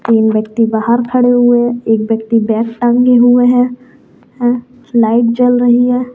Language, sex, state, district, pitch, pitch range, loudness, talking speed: Kumaoni, female, Uttarakhand, Tehri Garhwal, 240 Hz, 230-245 Hz, -11 LUFS, 155 wpm